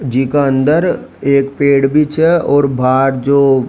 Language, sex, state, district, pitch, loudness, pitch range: Rajasthani, male, Rajasthan, Nagaur, 140 Hz, -13 LUFS, 135-145 Hz